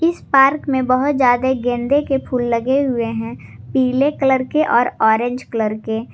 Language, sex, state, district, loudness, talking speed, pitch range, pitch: Hindi, female, Jharkhand, Garhwa, -17 LUFS, 175 wpm, 240-275 Hz, 255 Hz